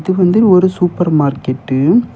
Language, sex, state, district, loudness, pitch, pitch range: Tamil, male, Tamil Nadu, Kanyakumari, -12 LUFS, 180 Hz, 140-185 Hz